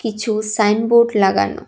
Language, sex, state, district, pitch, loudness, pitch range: Bengali, female, Tripura, West Tripura, 215 Hz, -16 LUFS, 210-230 Hz